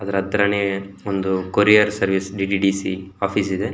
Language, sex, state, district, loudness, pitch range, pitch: Kannada, male, Karnataka, Shimoga, -20 LUFS, 95-100 Hz, 100 Hz